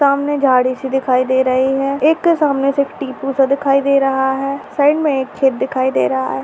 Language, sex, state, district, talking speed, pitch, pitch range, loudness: Hindi, female, Chhattisgarh, Kabirdham, 150 wpm, 270 Hz, 260-280 Hz, -15 LUFS